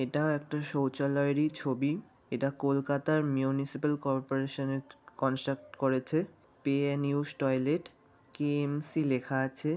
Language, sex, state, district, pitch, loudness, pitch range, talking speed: Bengali, male, West Bengal, North 24 Parganas, 140 Hz, -32 LUFS, 135-150 Hz, 110 wpm